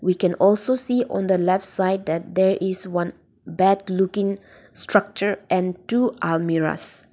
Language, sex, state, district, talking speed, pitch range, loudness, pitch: English, female, Nagaland, Dimapur, 160 wpm, 185-200 Hz, -22 LUFS, 190 Hz